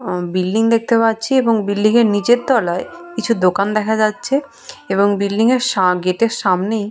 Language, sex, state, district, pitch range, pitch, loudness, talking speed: Bengali, female, West Bengal, Purulia, 200-230 Hz, 220 Hz, -16 LUFS, 175 wpm